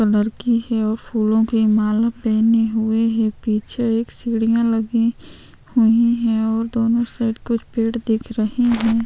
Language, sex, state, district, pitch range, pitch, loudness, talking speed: Hindi, female, Chhattisgarh, Sukma, 220-230 Hz, 225 Hz, -19 LUFS, 160 wpm